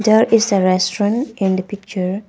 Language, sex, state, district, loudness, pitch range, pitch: English, female, Arunachal Pradesh, Papum Pare, -17 LUFS, 185-220 Hz, 200 Hz